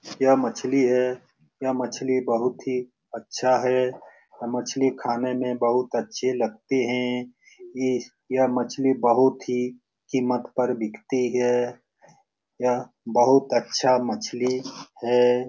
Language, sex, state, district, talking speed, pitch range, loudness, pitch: Hindi, male, Bihar, Lakhisarai, 120 wpm, 125-130 Hz, -24 LUFS, 125 Hz